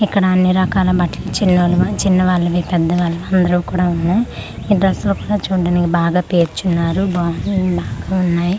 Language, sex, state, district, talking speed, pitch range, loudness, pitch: Telugu, female, Andhra Pradesh, Manyam, 130 wpm, 175-190 Hz, -16 LUFS, 180 Hz